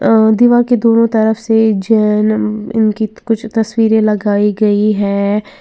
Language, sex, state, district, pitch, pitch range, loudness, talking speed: Hindi, female, Uttar Pradesh, Lalitpur, 220 Hz, 210-225 Hz, -12 LUFS, 150 wpm